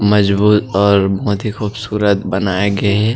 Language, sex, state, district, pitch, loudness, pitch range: Chhattisgarhi, male, Chhattisgarh, Sarguja, 100 Hz, -15 LUFS, 100-105 Hz